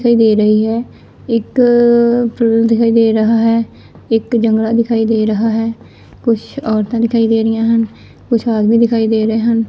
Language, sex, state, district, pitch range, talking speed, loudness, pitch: Punjabi, female, Punjab, Fazilka, 225-230 Hz, 165 wpm, -13 LUFS, 230 Hz